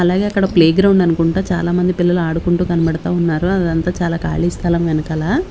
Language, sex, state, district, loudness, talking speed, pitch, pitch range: Telugu, female, Andhra Pradesh, Sri Satya Sai, -16 LUFS, 165 wpm, 175 Hz, 165-180 Hz